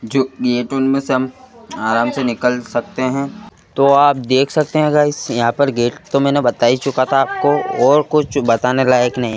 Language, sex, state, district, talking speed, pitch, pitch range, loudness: Hindi, male, Madhya Pradesh, Bhopal, 205 wpm, 135 Hz, 125-140 Hz, -16 LUFS